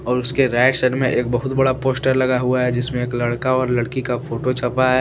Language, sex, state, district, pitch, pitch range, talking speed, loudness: Hindi, male, Jharkhand, Deoghar, 125 Hz, 125-130 Hz, 240 wpm, -18 LUFS